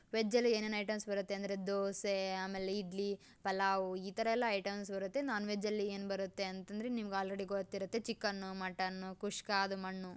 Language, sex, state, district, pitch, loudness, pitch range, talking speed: Kannada, female, Karnataka, Dakshina Kannada, 200 Hz, -38 LUFS, 195-210 Hz, 160 wpm